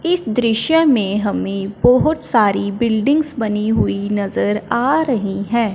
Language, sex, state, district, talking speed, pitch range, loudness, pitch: Hindi, female, Punjab, Fazilka, 135 wpm, 205-250 Hz, -17 LUFS, 220 Hz